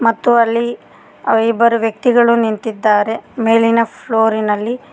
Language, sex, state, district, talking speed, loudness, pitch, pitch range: Kannada, female, Karnataka, Koppal, 95 wpm, -14 LUFS, 230 Hz, 225-235 Hz